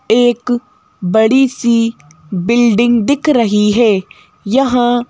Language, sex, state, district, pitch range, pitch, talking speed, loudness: Hindi, female, Madhya Pradesh, Bhopal, 210-245 Hz, 235 Hz, 95 wpm, -13 LUFS